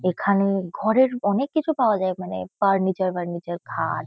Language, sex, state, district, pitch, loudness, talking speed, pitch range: Bengali, female, West Bengal, Kolkata, 195 Hz, -23 LUFS, 135 wpm, 180-215 Hz